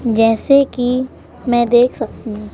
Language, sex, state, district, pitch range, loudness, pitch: Hindi, female, Madhya Pradesh, Bhopal, 225-255 Hz, -15 LUFS, 240 Hz